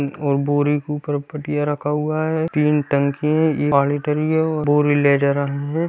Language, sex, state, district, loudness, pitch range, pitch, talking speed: Hindi, male, Bihar, Saharsa, -19 LUFS, 145-150 Hz, 150 Hz, 165 wpm